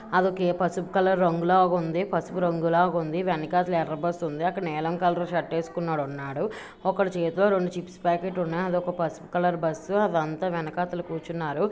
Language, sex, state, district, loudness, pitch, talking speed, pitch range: Telugu, female, Andhra Pradesh, Visakhapatnam, -26 LUFS, 175 Hz, 165 wpm, 165-180 Hz